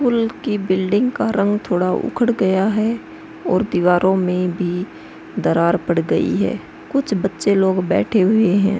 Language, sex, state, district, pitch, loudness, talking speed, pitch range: Hindi, female, Uttar Pradesh, Hamirpur, 195 Hz, -18 LUFS, 155 wpm, 180-215 Hz